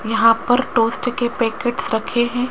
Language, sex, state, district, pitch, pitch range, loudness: Hindi, female, Rajasthan, Jaipur, 240 Hz, 225-245 Hz, -18 LUFS